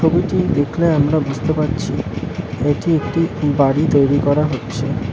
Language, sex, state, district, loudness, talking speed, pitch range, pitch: Bengali, male, West Bengal, Alipurduar, -17 LUFS, 130 wpm, 140-165 Hz, 145 Hz